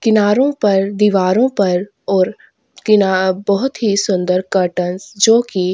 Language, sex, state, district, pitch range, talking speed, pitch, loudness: Hindi, female, Chhattisgarh, Sukma, 185-215 Hz, 125 wpm, 200 Hz, -15 LUFS